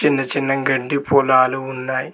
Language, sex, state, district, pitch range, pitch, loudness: Telugu, male, Telangana, Mahabubabad, 130-140 Hz, 135 Hz, -18 LUFS